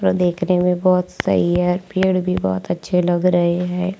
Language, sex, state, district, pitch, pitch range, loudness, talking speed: Hindi, female, Maharashtra, Gondia, 180 Hz, 175-180 Hz, -18 LUFS, 195 wpm